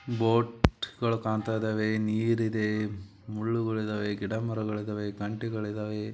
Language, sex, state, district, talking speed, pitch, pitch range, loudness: Kannada, male, Karnataka, Belgaum, 80 wpm, 110 Hz, 105-115 Hz, -30 LUFS